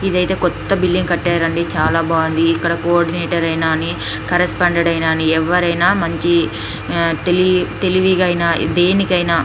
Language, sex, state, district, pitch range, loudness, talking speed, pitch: Telugu, female, Andhra Pradesh, Srikakulam, 165-180 Hz, -16 LUFS, 115 wpm, 170 Hz